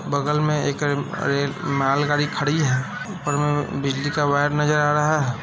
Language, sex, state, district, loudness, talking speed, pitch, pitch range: Hindi, male, Bihar, Saran, -22 LUFS, 165 wpm, 145 Hz, 140-150 Hz